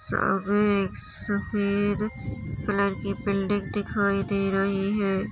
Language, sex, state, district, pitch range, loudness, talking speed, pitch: Hindi, female, Maharashtra, Nagpur, 195-205 Hz, -26 LUFS, 115 wpm, 200 Hz